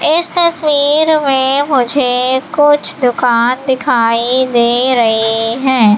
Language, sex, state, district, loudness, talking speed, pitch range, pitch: Hindi, female, Madhya Pradesh, Katni, -12 LUFS, 100 wpm, 240-290 Hz, 260 Hz